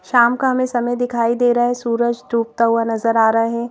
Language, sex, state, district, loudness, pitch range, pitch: Hindi, female, Madhya Pradesh, Bhopal, -17 LUFS, 230-245 Hz, 235 Hz